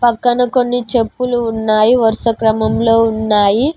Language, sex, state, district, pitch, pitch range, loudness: Telugu, female, Telangana, Mahabubabad, 230 Hz, 220-245 Hz, -14 LUFS